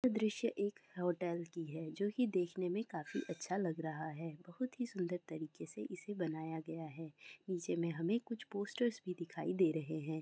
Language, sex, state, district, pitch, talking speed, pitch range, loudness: Hindi, female, Chhattisgarh, Raigarh, 175 Hz, 200 wpm, 160-200 Hz, -41 LUFS